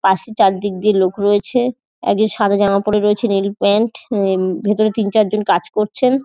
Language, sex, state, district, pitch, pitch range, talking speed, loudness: Bengali, female, West Bengal, North 24 Parganas, 210 Hz, 200-215 Hz, 190 wpm, -16 LUFS